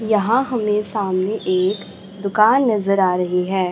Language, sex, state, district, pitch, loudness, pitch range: Hindi, male, Chhattisgarh, Raipur, 200 Hz, -18 LUFS, 185-215 Hz